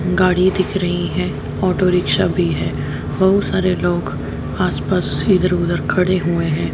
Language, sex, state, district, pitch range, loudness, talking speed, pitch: Hindi, female, Haryana, Jhajjar, 175-185 Hz, -18 LUFS, 150 wpm, 180 Hz